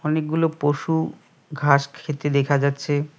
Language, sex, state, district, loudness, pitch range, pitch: Bengali, male, West Bengal, Cooch Behar, -22 LUFS, 145-160 Hz, 150 Hz